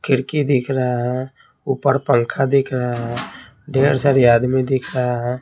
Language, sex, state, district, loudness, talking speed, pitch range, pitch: Hindi, male, Bihar, Patna, -18 LUFS, 165 wpm, 125-135 Hz, 130 Hz